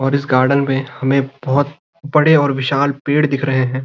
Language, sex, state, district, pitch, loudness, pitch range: Hindi, male, Uttarakhand, Uttarkashi, 140 Hz, -16 LUFS, 135-145 Hz